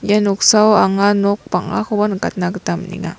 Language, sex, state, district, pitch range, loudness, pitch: Garo, female, Meghalaya, West Garo Hills, 190-210 Hz, -15 LUFS, 200 Hz